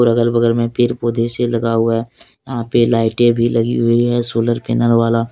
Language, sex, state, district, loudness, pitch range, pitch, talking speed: Hindi, male, Jharkhand, Deoghar, -16 LUFS, 115-120 Hz, 115 Hz, 215 wpm